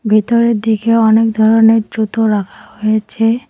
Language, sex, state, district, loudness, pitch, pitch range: Bengali, female, West Bengal, Cooch Behar, -13 LUFS, 220 Hz, 215-225 Hz